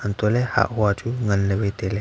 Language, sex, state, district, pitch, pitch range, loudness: Wancho, male, Arunachal Pradesh, Longding, 105 Hz, 100-115 Hz, -22 LUFS